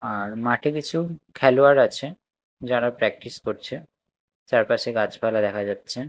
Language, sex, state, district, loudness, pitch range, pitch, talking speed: Bengali, male, Odisha, Nuapada, -23 LUFS, 105-140 Hz, 120 Hz, 120 wpm